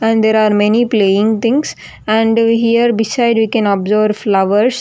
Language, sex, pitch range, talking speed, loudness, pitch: English, female, 210-230 Hz, 160 wpm, -13 LUFS, 220 Hz